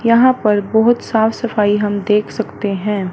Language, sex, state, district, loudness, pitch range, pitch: Hindi, female, Punjab, Fazilka, -15 LUFS, 205-230 Hz, 210 Hz